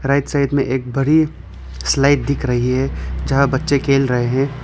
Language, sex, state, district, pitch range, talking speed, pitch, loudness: Hindi, male, Arunachal Pradesh, Lower Dibang Valley, 125-140 Hz, 180 wpm, 135 Hz, -17 LUFS